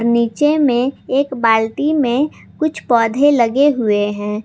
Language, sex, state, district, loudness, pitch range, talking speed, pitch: Hindi, female, Jharkhand, Garhwa, -15 LUFS, 225-285 Hz, 135 wpm, 250 Hz